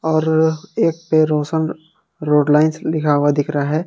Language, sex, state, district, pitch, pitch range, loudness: Hindi, male, Jharkhand, Palamu, 155 Hz, 150-160 Hz, -17 LUFS